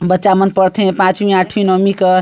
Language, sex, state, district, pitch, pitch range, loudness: Chhattisgarhi, male, Chhattisgarh, Sarguja, 190 Hz, 185-195 Hz, -12 LUFS